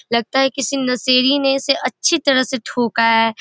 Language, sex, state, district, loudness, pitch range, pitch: Hindi, female, Bihar, Darbhanga, -16 LUFS, 240-275 Hz, 260 Hz